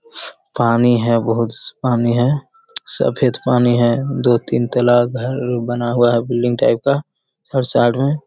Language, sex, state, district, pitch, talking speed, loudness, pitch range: Hindi, male, Bihar, Jamui, 120 Hz, 180 wpm, -16 LUFS, 120-130 Hz